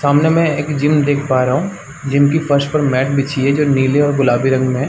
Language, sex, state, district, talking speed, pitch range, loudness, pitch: Hindi, male, Chhattisgarh, Bastar, 270 wpm, 135-150 Hz, -15 LUFS, 140 Hz